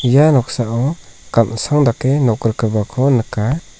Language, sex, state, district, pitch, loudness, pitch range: Garo, male, Meghalaya, South Garo Hills, 125 Hz, -16 LUFS, 115-140 Hz